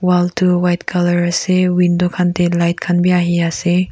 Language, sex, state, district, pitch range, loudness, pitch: Nagamese, female, Nagaland, Kohima, 175-180 Hz, -15 LUFS, 175 Hz